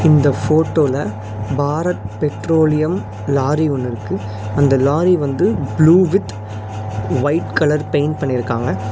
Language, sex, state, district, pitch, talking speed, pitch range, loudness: Tamil, male, Tamil Nadu, Nilgiris, 140 Hz, 110 wpm, 110-155 Hz, -17 LUFS